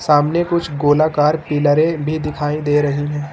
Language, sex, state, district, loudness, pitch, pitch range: Hindi, male, Uttar Pradesh, Lucknow, -17 LUFS, 150 Hz, 145-155 Hz